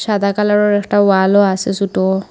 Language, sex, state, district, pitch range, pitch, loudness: Bengali, female, Assam, Hailakandi, 195-205 Hz, 200 Hz, -14 LUFS